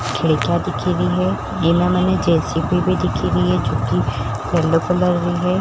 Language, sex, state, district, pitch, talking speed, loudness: Marwari, female, Rajasthan, Churu, 165 Hz, 160 wpm, -18 LUFS